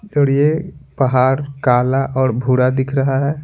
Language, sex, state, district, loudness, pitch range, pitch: Hindi, male, Bihar, Patna, -16 LUFS, 130-145 Hz, 135 Hz